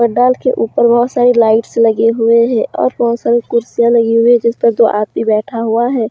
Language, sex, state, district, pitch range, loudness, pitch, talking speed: Hindi, female, Jharkhand, Deoghar, 230-240 Hz, -12 LUFS, 235 Hz, 225 wpm